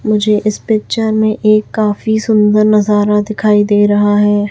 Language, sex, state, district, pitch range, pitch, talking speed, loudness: Hindi, female, Chhattisgarh, Raipur, 205-215 Hz, 210 Hz, 160 wpm, -12 LUFS